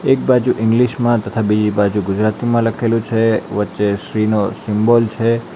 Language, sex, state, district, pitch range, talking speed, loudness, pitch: Gujarati, male, Gujarat, Valsad, 105-120 Hz, 160 wpm, -16 LUFS, 110 Hz